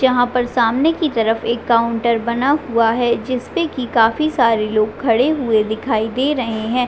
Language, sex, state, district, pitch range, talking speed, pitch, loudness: Hindi, female, Chhattisgarh, Raigarh, 225-260 Hz, 185 wpm, 235 Hz, -17 LUFS